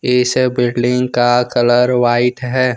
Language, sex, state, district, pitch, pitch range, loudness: Hindi, male, Jharkhand, Ranchi, 125 Hz, 120-125 Hz, -14 LUFS